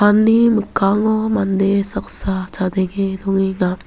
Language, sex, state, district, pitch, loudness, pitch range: Garo, female, Meghalaya, West Garo Hills, 195 Hz, -17 LUFS, 190-210 Hz